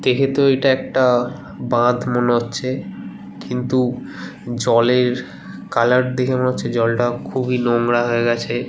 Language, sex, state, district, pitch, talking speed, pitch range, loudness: Bengali, male, West Bengal, Kolkata, 125 Hz, 125 wpm, 120-130 Hz, -18 LUFS